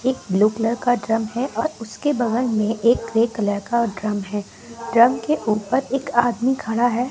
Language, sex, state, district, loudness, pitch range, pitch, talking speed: Hindi, female, Bihar, West Champaran, -21 LUFS, 220-245 Hz, 235 Hz, 195 wpm